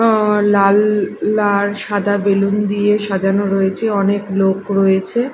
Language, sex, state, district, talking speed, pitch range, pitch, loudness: Bengali, female, Odisha, Malkangiri, 125 wpm, 195-210 Hz, 205 Hz, -15 LUFS